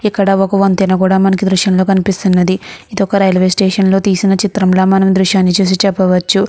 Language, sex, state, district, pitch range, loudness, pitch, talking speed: Telugu, female, Andhra Pradesh, Guntur, 185-195 Hz, -12 LUFS, 195 Hz, 195 wpm